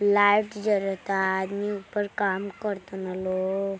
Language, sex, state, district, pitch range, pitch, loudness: Hindi, female, Uttar Pradesh, Deoria, 190-205 Hz, 195 Hz, -26 LUFS